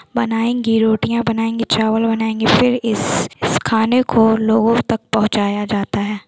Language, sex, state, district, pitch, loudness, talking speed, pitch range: Hindi, female, Chhattisgarh, Sukma, 225 Hz, -16 LUFS, 135 wpm, 220-230 Hz